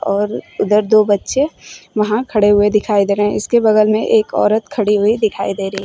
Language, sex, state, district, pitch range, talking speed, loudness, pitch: Hindi, female, Uttar Pradesh, Shamli, 205-220 Hz, 215 wpm, -15 LUFS, 210 Hz